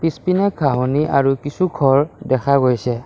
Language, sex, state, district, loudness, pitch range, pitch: Assamese, male, Assam, Kamrup Metropolitan, -17 LUFS, 130-160 Hz, 140 Hz